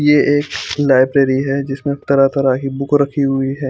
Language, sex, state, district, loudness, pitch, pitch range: Hindi, male, Chandigarh, Chandigarh, -15 LUFS, 140 Hz, 135-140 Hz